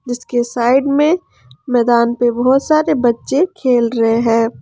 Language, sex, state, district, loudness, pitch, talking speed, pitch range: Hindi, female, Jharkhand, Ranchi, -15 LUFS, 245 Hz, 145 wpm, 235-275 Hz